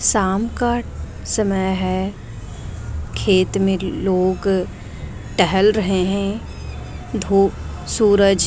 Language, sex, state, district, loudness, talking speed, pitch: Hindi, female, Delhi, New Delhi, -19 LUFS, 90 wpm, 190 Hz